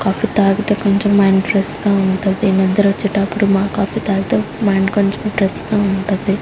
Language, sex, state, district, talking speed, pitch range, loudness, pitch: Telugu, female, Andhra Pradesh, Guntur, 140 wpm, 195-205 Hz, -15 LUFS, 200 Hz